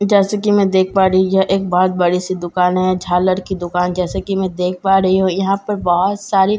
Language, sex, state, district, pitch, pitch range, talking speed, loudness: Hindi, female, Bihar, Katihar, 190 Hz, 180-195 Hz, 255 wpm, -16 LUFS